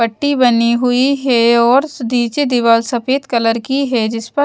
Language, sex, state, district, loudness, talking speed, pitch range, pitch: Hindi, female, Bihar, West Champaran, -14 LUFS, 175 wpm, 235-270 Hz, 245 Hz